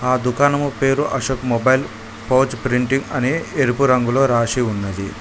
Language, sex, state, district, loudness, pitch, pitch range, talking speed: Telugu, male, Telangana, Mahabubabad, -18 LUFS, 130 Hz, 120-135 Hz, 140 wpm